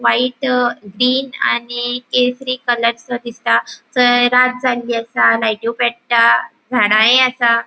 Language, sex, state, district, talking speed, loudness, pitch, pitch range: Konkani, female, Goa, North and South Goa, 115 wpm, -15 LUFS, 245 Hz, 235-250 Hz